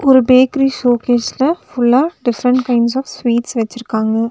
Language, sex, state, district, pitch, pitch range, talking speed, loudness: Tamil, female, Tamil Nadu, Nilgiris, 245 Hz, 235-265 Hz, 125 wpm, -14 LUFS